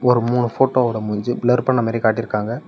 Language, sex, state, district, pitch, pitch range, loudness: Tamil, male, Tamil Nadu, Namakkal, 120 Hz, 115-125 Hz, -19 LUFS